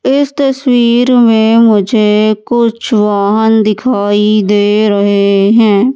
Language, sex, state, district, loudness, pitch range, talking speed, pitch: Hindi, female, Madhya Pradesh, Katni, -9 LUFS, 205-240 Hz, 100 wpm, 215 Hz